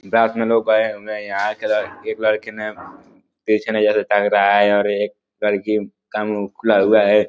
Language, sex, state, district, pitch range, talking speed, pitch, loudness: Hindi, male, Uttar Pradesh, Deoria, 105-110 Hz, 180 wpm, 105 Hz, -18 LUFS